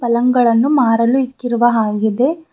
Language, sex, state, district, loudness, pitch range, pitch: Kannada, female, Karnataka, Bidar, -15 LUFS, 230-260 Hz, 240 Hz